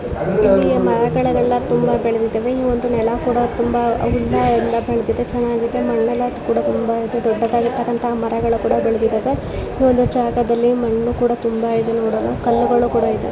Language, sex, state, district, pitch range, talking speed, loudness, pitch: Kannada, female, Karnataka, Dharwad, 230-240 Hz, 135 wpm, -18 LUFS, 235 Hz